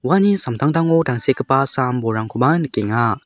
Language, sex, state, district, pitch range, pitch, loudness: Garo, male, Meghalaya, South Garo Hills, 120-160 Hz, 135 Hz, -17 LUFS